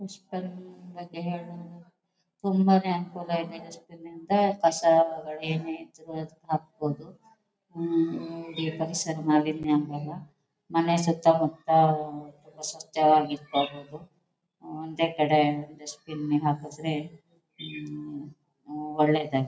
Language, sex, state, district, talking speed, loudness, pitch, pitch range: Kannada, female, Karnataka, Shimoga, 100 wpm, -27 LUFS, 160 Hz, 150-170 Hz